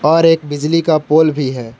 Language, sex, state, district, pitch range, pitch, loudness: Hindi, male, Jharkhand, Palamu, 145-165 Hz, 155 Hz, -13 LUFS